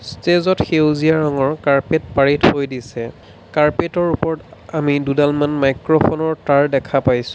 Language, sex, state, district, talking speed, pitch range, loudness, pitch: Assamese, male, Assam, Sonitpur, 120 wpm, 135-160 Hz, -17 LUFS, 145 Hz